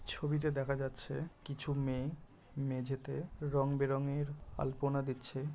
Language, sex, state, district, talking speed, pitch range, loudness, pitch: Bengali, male, West Bengal, Kolkata, 110 wpm, 135-145 Hz, -38 LUFS, 140 Hz